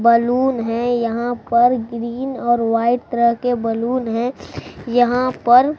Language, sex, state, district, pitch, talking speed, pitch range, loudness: Hindi, male, Bihar, Katihar, 240 Hz, 135 wpm, 235-250 Hz, -18 LUFS